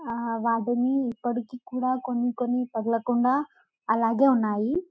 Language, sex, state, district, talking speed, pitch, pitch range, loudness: Telugu, female, Telangana, Karimnagar, 110 wpm, 245 Hz, 230-255 Hz, -26 LUFS